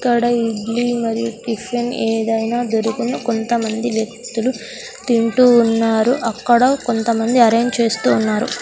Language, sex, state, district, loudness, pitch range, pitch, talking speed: Telugu, female, Andhra Pradesh, Sri Satya Sai, -17 LUFS, 225-240 Hz, 235 Hz, 105 wpm